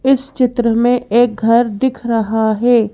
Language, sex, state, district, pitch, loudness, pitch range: Hindi, female, Madhya Pradesh, Bhopal, 235 Hz, -14 LUFS, 225-250 Hz